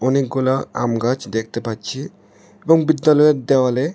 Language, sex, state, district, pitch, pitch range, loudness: Bengali, male, Tripura, West Tripura, 130 Hz, 120-150 Hz, -18 LUFS